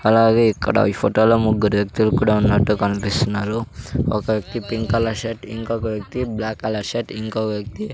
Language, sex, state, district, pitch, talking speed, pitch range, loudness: Telugu, male, Andhra Pradesh, Sri Satya Sai, 110 Hz, 175 wpm, 105-115 Hz, -20 LUFS